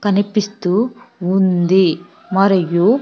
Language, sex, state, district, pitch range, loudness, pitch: Telugu, female, Andhra Pradesh, Sri Satya Sai, 180-210 Hz, -16 LUFS, 195 Hz